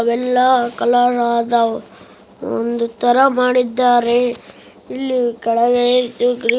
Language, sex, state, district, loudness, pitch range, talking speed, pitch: Kannada, male, Karnataka, Bellary, -16 LUFS, 235-250 Hz, 75 wpm, 245 Hz